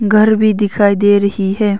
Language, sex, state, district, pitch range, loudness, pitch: Hindi, female, Arunachal Pradesh, Longding, 200-215 Hz, -12 LUFS, 205 Hz